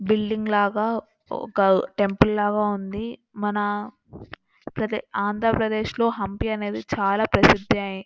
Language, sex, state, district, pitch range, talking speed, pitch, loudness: Telugu, female, Andhra Pradesh, Anantapur, 200-220 Hz, 110 wpm, 210 Hz, -23 LUFS